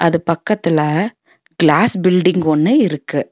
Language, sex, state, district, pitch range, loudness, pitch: Tamil, female, Tamil Nadu, Nilgiris, 160-215 Hz, -15 LUFS, 180 Hz